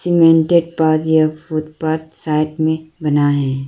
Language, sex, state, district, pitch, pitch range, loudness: Hindi, female, Arunachal Pradesh, Lower Dibang Valley, 155 Hz, 155-160 Hz, -16 LUFS